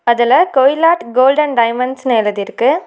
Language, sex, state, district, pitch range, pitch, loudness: Tamil, female, Tamil Nadu, Nilgiris, 235-280 Hz, 255 Hz, -13 LUFS